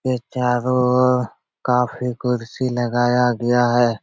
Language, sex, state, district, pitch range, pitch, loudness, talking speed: Hindi, male, Bihar, Jahanabad, 120-125 Hz, 125 Hz, -19 LUFS, 120 wpm